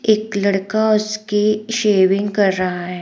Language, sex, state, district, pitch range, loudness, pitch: Hindi, female, Himachal Pradesh, Shimla, 195-215 Hz, -17 LUFS, 205 Hz